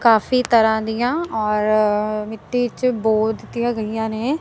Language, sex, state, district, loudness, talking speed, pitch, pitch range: Punjabi, female, Punjab, Kapurthala, -19 LUFS, 135 wpm, 220 Hz, 215-245 Hz